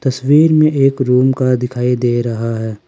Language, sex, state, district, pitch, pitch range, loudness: Hindi, male, Jharkhand, Ranchi, 125 Hz, 120-135 Hz, -14 LUFS